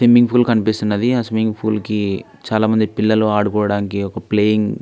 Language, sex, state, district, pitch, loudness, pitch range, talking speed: Telugu, male, Andhra Pradesh, Visakhapatnam, 110 Hz, -17 LUFS, 105-110 Hz, 150 wpm